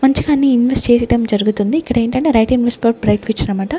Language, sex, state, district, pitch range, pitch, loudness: Telugu, female, Andhra Pradesh, Sri Satya Sai, 220-260 Hz, 240 Hz, -14 LUFS